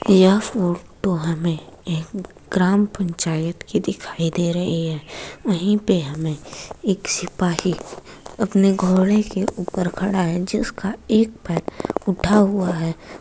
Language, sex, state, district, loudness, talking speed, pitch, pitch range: Hindi, female, Uttar Pradesh, Etah, -21 LUFS, 125 wpm, 185 Hz, 170-200 Hz